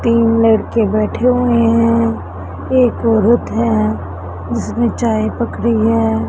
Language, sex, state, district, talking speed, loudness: Hindi, male, Punjab, Pathankot, 115 wpm, -14 LUFS